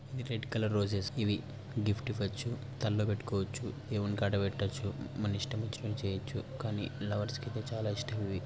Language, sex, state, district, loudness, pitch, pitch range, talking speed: Telugu, male, Andhra Pradesh, Anantapur, -36 LUFS, 110 Hz, 105-120 Hz, 165 wpm